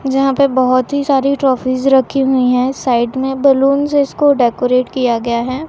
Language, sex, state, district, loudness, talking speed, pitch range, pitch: Hindi, female, Chhattisgarh, Raipur, -14 LUFS, 180 wpm, 250-275 Hz, 265 Hz